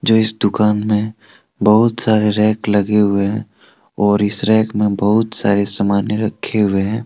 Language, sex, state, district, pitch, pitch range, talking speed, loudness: Hindi, male, Jharkhand, Deoghar, 105 Hz, 105-110 Hz, 170 wpm, -16 LUFS